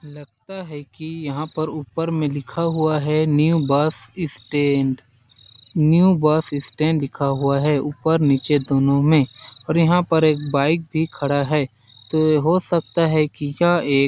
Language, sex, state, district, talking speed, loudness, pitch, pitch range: Hindi, male, Chhattisgarh, Balrampur, 160 wpm, -20 LUFS, 150 Hz, 140-160 Hz